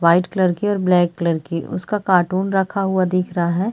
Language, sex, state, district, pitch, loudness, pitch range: Hindi, female, Chhattisgarh, Sarguja, 185 Hz, -19 LUFS, 175-190 Hz